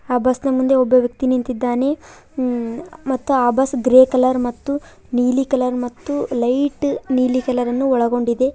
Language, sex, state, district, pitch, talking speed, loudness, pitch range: Kannada, female, Karnataka, Koppal, 255 Hz, 145 wpm, -18 LUFS, 245-270 Hz